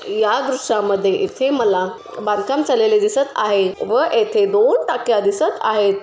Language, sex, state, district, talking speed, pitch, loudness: Marathi, female, Maharashtra, Sindhudurg, 140 wpm, 260 Hz, -17 LUFS